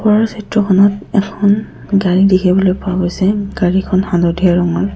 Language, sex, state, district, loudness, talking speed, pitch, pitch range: Assamese, female, Assam, Kamrup Metropolitan, -14 LUFS, 120 wpm, 190 Hz, 185-205 Hz